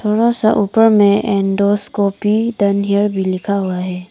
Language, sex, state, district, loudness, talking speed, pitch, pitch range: Hindi, female, Arunachal Pradesh, Papum Pare, -15 LUFS, 160 wpm, 200 Hz, 195-215 Hz